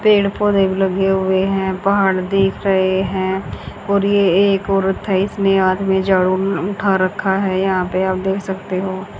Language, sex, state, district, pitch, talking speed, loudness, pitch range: Hindi, female, Haryana, Charkhi Dadri, 190 Hz, 190 wpm, -17 LUFS, 190-195 Hz